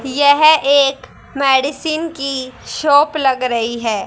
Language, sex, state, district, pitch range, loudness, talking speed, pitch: Hindi, female, Haryana, Charkhi Dadri, 260-290 Hz, -14 LUFS, 120 wpm, 275 Hz